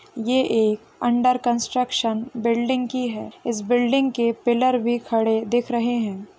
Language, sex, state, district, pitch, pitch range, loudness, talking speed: Hindi, female, Chhattisgarh, Korba, 240 Hz, 230-250 Hz, -22 LUFS, 150 wpm